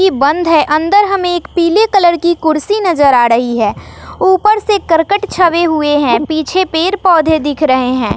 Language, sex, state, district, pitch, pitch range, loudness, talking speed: Hindi, female, Bihar, West Champaran, 335 Hz, 300-375 Hz, -11 LUFS, 190 wpm